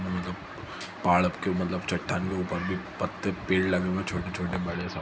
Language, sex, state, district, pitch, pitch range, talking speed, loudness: Hindi, male, Chhattisgarh, Sukma, 90 Hz, 90-95 Hz, 205 wpm, -29 LUFS